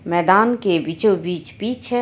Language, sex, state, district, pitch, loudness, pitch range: Hindi, female, Jharkhand, Ranchi, 190 Hz, -19 LUFS, 175-225 Hz